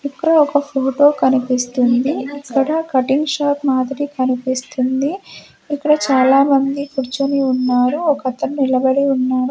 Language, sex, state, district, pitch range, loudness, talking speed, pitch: Telugu, female, Andhra Pradesh, Sri Satya Sai, 255-285 Hz, -16 LUFS, 100 wpm, 270 Hz